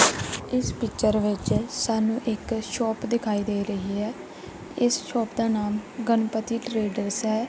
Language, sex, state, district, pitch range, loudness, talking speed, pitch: Punjabi, female, Punjab, Kapurthala, 210-230 Hz, -26 LUFS, 135 wpm, 220 Hz